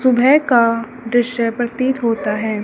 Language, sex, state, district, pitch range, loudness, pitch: Hindi, female, Haryana, Charkhi Dadri, 230-255 Hz, -16 LUFS, 240 Hz